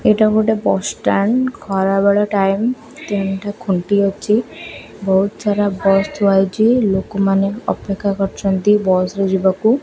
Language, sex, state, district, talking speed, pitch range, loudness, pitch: Odia, female, Odisha, Khordha, 120 wpm, 195-215 Hz, -16 LUFS, 200 Hz